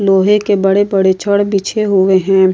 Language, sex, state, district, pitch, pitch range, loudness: Hindi, female, Uttar Pradesh, Jalaun, 195 Hz, 190-205 Hz, -12 LUFS